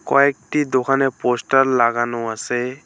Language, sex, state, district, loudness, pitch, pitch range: Bengali, male, West Bengal, Alipurduar, -19 LUFS, 125 Hz, 120-135 Hz